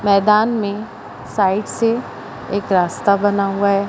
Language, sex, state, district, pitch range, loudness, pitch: Hindi, female, Madhya Pradesh, Umaria, 200-210 Hz, -18 LUFS, 200 Hz